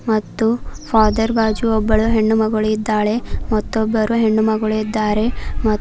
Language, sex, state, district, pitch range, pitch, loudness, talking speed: Kannada, female, Karnataka, Bidar, 215-225 Hz, 220 Hz, -18 LUFS, 115 wpm